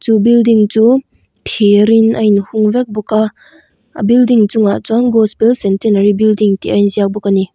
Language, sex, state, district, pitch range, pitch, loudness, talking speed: Mizo, female, Mizoram, Aizawl, 205-225 Hz, 215 Hz, -11 LUFS, 160 wpm